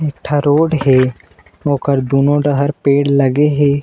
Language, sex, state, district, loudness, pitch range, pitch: Chhattisgarhi, male, Chhattisgarh, Bilaspur, -14 LUFS, 135-145 Hz, 140 Hz